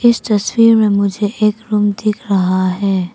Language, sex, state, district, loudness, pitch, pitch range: Hindi, female, Arunachal Pradesh, Papum Pare, -14 LUFS, 205 Hz, 195-215 Hz